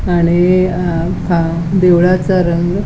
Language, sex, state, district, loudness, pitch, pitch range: Marathi, female, Goa, North and South Goa, -13 LUFS, 175 Hz, 170-185 Hz